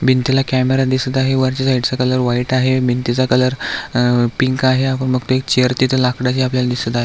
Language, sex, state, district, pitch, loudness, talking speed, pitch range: Marathi, male, Maharashtra, Aurangabad, 130 Hz, -16 LUFS, 205 wpm, 125-130 Hz